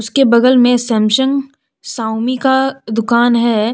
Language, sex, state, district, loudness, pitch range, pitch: Hindi, female, Jharkhand, Deoghar, -13 LUFS, 225-265 Hz, 240 Hz